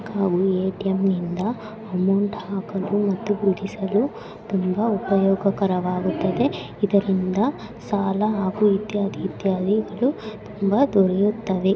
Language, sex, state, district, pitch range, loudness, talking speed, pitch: Kannada, female, Karnataka, Bellary, 190-210 Hz, -22 LUFS, 80 wpm, 200 Hz